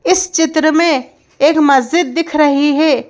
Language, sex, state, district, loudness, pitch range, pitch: Hindi, female, Madhya Pradesh, Bhopal, -12 LUFS, 290-330 Hz, 310 Hz